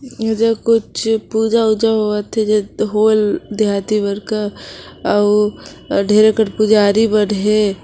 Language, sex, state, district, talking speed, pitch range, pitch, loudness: Chhattisgarhi, female, Chhattisgarh, Sarguja, 100 wpm, 210-220 Hz, 215 Hz, -15 LUFS